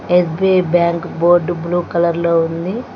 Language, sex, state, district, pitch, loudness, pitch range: Telugu, female, Telangana, Hyderabad, 175 Hz, -16 LUFS, 170-175 Hz